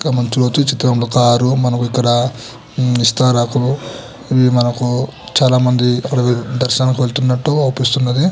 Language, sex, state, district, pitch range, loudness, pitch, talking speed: Telugu, male, Telangana, Nalgonda, 120-130 Hz, -15 LUFS, 125 Hz, 50 wpm